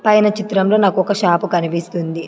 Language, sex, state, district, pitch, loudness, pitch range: Telugu, female, Andhra Pradesh, Sri Satya Sai, 195 Hz, -16 LUFS, 170-210 Hz